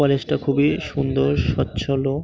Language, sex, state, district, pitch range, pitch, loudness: Bengali, male, West Bengal, Paschim Medinipur, 95-140 Hz, 135 Hz, -21 LUFS